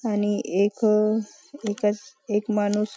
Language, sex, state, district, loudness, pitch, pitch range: Marathi, female, Maharashtra, Nagpur, -24 LUFS, 210 Hz, 205-220 Hz